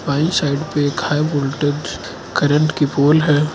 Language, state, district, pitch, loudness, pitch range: Hindi, Arunachal Pradesh, Lower Dibang Valley, 145 Hz, -17 LUFS, 145-155 Hz